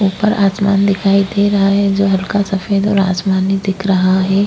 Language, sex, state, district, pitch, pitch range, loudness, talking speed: Hindi, female, Maharashtra, Aurangabad, 195 Hz, 190-200 Hz, -14 LUFS, 190 wpm